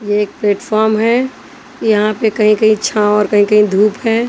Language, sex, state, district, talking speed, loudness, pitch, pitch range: Hindi, female, Haryana, Charkhi Dadri, 195 wpm, -13 LUFS, 215 Hz, 210-225 Hz